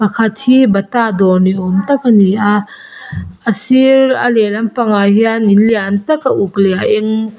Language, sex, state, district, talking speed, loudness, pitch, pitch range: Mizo, female, Mizoram, Aizawl, 205 wpm, -11 LUFS, 215 Hz, 200-235 Hz